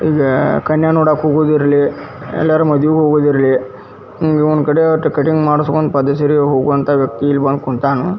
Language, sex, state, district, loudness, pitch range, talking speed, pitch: Kannada, male, Karnataka, Dharwad, -13 LUFS, 140-155 Hz, 155 wpm, 145 Hz